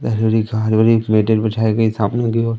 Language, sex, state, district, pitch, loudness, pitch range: Hindi, male, Madhya Pradesh, Umaria, 110 Hz, -16 LUFS, 110-115 Hz